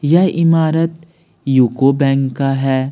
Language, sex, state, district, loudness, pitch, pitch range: Hindi, male, Bihar, Patna, -14 LUFS, 140 Hz, 135-165 Hz